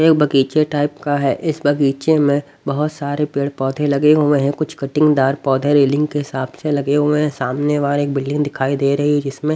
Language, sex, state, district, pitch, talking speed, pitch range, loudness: Hindi, male, Haryana, Rohtak, 145 Hz, 205 wpm, 140-150 Hz, -17 LUFS